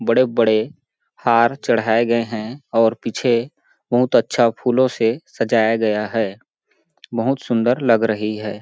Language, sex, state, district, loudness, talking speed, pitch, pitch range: Hindi, male, Chhattisgarh, Balrampur, -18 LUFS, 130 wpm, 115 Hz, 110-125 Hz